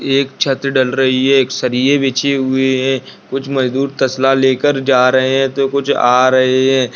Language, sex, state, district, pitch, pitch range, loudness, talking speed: Hindi, male, Bihar, Saharsa, 135 Hz, 130-135 Hz, -14 LUFS, 200 wpm